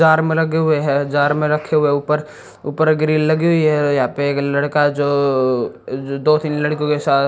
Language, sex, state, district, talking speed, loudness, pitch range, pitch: Hindi, male, Haryana, Jhajjar, 200 wpm, -17 LUFS, 140-155 Hz, 150 Hz